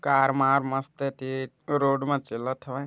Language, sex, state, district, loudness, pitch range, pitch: Chhattisgarhi, male, Chhattisgarh, Bilaspur, -26 LUFS, 130-140 Hz, 135 Hz